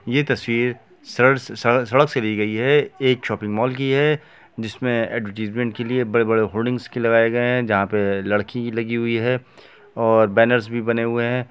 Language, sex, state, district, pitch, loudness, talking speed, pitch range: Hindi, male, Bihar, Gopalganj, 120 Hz, -20 LUFS, 165 wpm, 115-125 Hz